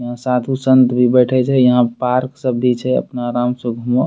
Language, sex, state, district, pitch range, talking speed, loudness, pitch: Angika, male, Bihar, Bhagalpur, 125-130 Hz, 205 wpm, -15 LUFS, 125 Hz